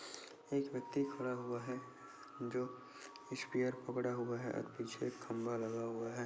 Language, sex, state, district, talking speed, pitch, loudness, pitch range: Hindi, male, Chhattisgarh, Bastar, 155 wpm, 125 Hz, -42 LUFS, 120-125 Hz